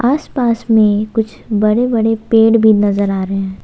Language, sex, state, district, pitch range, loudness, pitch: Hindi, female, Jharkhand, Ranchi, 205-225 Hz, -13 LUFS, 220 Hz